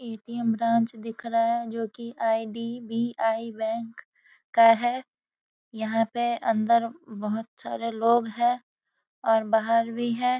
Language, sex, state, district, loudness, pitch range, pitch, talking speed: Hindi, female, Bihar, Sitamarhi, -26 LUFS, 225-235 Hz, 230 Hz, 125 wpm